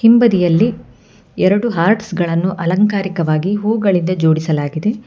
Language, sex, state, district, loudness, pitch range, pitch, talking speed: Kannada, female, Karnataka, Bangalore, -15 LUFS, 170-215 Hz, 190 Hz, 85 wpm